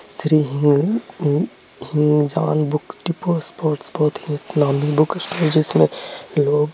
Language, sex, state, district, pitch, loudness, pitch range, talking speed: Hindi, male, Bihar, Gaya, 150 Hz, -19 LUFS, 145-160 Hz, 125 wpm